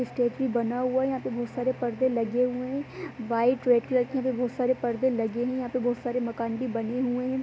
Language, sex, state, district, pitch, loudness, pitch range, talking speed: Hindi, female, Uttar Pradesh, Budaun, 250 Hz, -28 LUFS, 240-255 Hz, 225 wpm